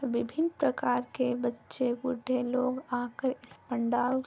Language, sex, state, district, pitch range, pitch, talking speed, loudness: Hindi, female, Uttar Pradesh, Jyotiba Phule Nagar, 245-260 Hz, 255 Hz, 155 wpm, -31 LUFS